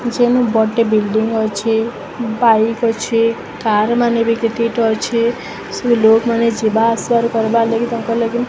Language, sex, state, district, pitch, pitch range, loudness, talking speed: Odia, female, Odisha, Sambalpur, 230 Hz, 225-235 Hz, -15 LUFS, 150 wpm